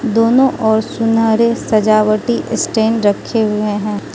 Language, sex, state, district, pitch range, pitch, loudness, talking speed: Hindi, female, Manipur, Imphal West, 215-230 Hz, 220 Hz, -14 LUFS, 115 wpm